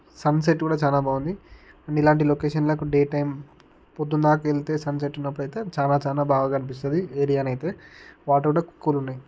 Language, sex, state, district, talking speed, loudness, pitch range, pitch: Telugu, male, Telangana, Karimnagar, 170 wpm, -24 LUFS, 140-155 Hz, 145 Hz